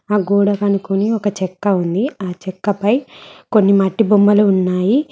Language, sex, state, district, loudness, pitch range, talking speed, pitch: Telugu, female, Telangana, Mahabubabad, -16 LUFS, 190-210 Hz, 150 wpm, 200 Hz